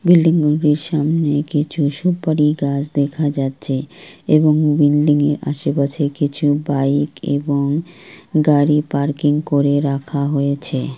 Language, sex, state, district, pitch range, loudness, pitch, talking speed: Bengali, female, West Bengal, Purulia, 140-155 Hz, -17 LUFS, 145 Hz, 110 wpm